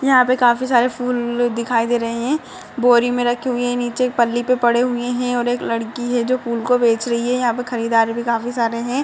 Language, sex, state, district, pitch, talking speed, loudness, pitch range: Hindi, female, Uttar Pradesh, Budaun, 240 Hz, 250 wpm, -18 LUFS, 235-250 Hz